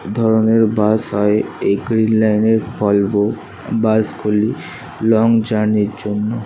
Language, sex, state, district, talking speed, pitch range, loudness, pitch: Bengali, male, West Bengal, Kolkata, 120 wpm, 105-110 Hz, -16 LUFS, 110 Hz